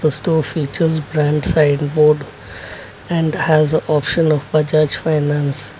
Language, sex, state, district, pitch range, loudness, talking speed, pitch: English, male, Karnataka, Bangalore, 150-160 Hz, -16 LUFS, 115 wpm, 155 Hz